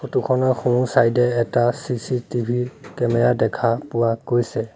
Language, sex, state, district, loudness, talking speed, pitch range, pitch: Assamese, male, Assam, Sonitpur, -20 LUFS, 125 wpm, 120-125 Hz, 120 Hz